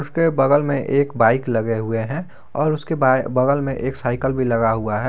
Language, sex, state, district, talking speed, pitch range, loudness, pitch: Hindi, male, Jharkhand, Garhwa, 225 wpm, 115-140 Hz, -19 LUFS, 130 Hz